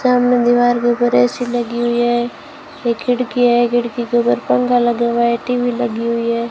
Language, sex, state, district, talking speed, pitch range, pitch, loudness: Hindi, female, Rajasthan, Jaisalmer, 205 wpm, 235-245 Hz, 240 Hz, -16 LUFS